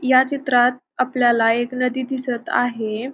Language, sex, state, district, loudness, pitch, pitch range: Marathi, female, Maharashtra, Pune, -20 LUFS, 250 Hz, 240-255 Hz